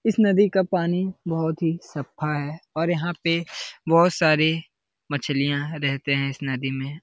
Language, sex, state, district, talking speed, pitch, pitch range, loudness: Hindi, male, Bihar, Lakhisarai, 170 wpm, 155 Hz, 140-170 Hz, -23 LUFS